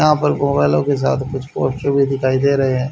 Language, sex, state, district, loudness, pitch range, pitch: Hindi, male, Haryana, Charkhi Dadri, -17 LUFS, 130-140 Hz, 135 Hz